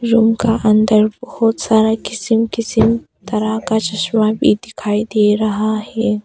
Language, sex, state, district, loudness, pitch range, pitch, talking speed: Hindi, female, Arunachal Pradesh, Longding, -16 LUFS, 215-225 Hz, 220 Hz, 145 wpm